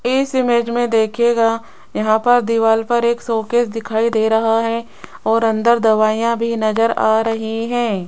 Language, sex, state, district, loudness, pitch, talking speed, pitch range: Hindi, female, Rajasthan, Jaipur, -16 LUFS, 230 Hz, 165 wpm, 220-235 Hz